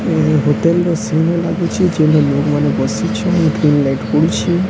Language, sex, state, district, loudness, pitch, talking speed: Odia, male, Odisha, Sambalpur, -14 LUFS, 155 Hz, 140 wpm